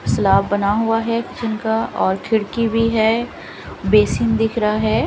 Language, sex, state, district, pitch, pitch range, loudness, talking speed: Hindi, female, Punjab, Fazilka, 225 Hz, 215-230 Hz, -18 LUFS, 165 wpm